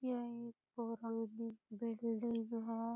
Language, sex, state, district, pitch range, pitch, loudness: Hindi, female, Bihar, Purnia, 230-235 Hz, 230 Hz, -43 LUFS